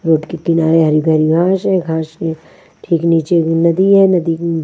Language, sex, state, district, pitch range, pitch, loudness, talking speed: Hindi, female, Maharashtra, Washim, 160-175 Hz, 165 Hz, -13 LUFS, 180 wpm